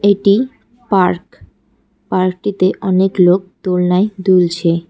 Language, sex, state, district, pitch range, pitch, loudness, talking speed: Bengali, female, West Bengal, Cooch Behar, 180-200 Hz, 185 Hz, -14 LUFS, 85 wpm